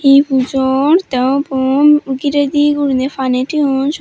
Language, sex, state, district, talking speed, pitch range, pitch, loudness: Chakma, female, Tripura, Dhalai, 150 wpm, 265-290 Hz, 275 Hz, -13 LUFS